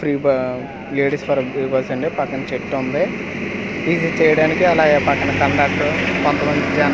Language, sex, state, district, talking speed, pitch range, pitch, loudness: Telugu, male, Andhra Pradesh, Manyam, 145 wpm, 135-160 Hz, 145 Hz, -18 LUFS